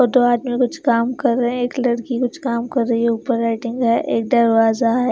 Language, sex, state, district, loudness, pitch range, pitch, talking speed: Hindi, female, Himachal Pradesh, Shimla, -18 LUFS, 235-250 Hz, 240 Hz, 235 wpm